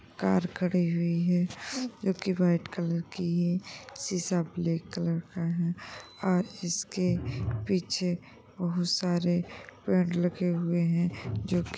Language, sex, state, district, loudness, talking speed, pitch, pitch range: Hindi, female, Uttar Pradesh, Gorakhpur, -30 LUFS, 140 wpm, 175 Hz, 170-180 Hz